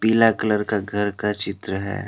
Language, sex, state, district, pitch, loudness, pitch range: Hindi, male, Jharkhand, Deoghar, 105 Hz, -22 LUFS, 100-110 Hz